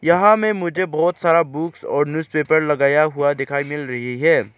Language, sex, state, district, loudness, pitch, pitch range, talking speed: Hindi, male, Arunachal Pradesh, Lower Dibang Valley, -18 LUFS, 155 Hz, 145-170 Hz, 185 wpm